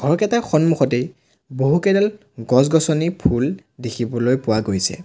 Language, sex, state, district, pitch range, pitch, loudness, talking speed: Assamese, male, Assam, Sonitpur, 120-170 Hz, 140 Hz, -19 LUFS, 95 wpm